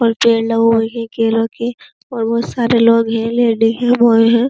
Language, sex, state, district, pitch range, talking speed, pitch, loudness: Hindi, female, Uttar Pradesh, Jyotiba Phule Nagar, 225-235 Hz, 215 wpm, 230 Hz, -14 LUFS